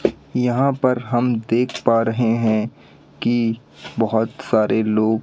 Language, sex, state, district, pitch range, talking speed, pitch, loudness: Hindi, male, Madhya Pradesh, Katni, 110-125 Hz, 125 wpm, 115 Hz, -19 LUFS